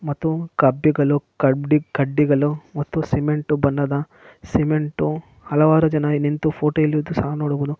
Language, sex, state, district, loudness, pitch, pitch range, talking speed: Kannada, male, Karnataka, Mysore, -20 LUFS, 150 Hz, 145-155 Hz, 85 wpm